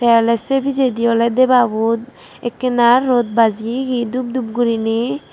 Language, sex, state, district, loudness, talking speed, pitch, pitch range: Chakma, female, Tripura, Dhalai, -16 LUFS, 135 wpm, 235 Hz, 230-255 Hz